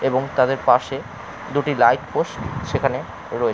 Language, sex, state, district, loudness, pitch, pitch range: Bengali, male, West Bengal, Jalpaiguri, -21 LUFS, 130 Hz, 120-135 Hz